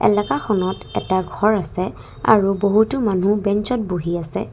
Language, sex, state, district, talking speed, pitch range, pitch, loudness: Assamese, female, Assam, Kamrup Metropolitan, 145 wpm, 185-215 Hz, 205 Hz, -19 LUFS